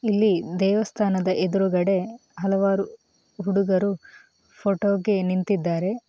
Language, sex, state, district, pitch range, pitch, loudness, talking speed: Kannada, female, Karnataka, Mysore, 190-205 Hz, 195 Hz, -23 LUFS, 70 wpm